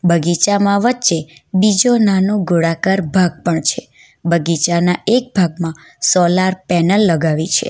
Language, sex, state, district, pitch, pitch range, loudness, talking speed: Gujarati, female, Gujarat, Valsad, 180 Hz, 170-200 Hz, -15 LUFS, 115 wpm